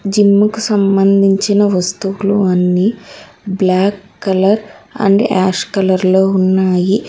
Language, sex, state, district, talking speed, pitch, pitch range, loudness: Telugu, female, Telangana, Hyderabad, 100 wpm, 195 Hz, 190-205 Hz, -13 LUFS